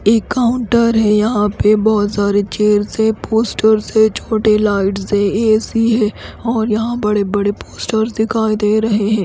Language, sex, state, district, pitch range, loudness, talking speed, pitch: Hindi, female, Odisha, Khordha, 210-225 Hz, -15 LUFS, 170 wpm, 215 Hz